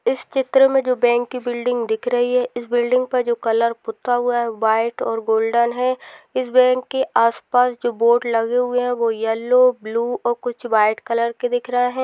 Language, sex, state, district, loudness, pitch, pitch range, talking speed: Hindi, female, Rajasthan, Nagaur, -19 LUFS, 245 Hz, 235-250 Hz, 215 wpm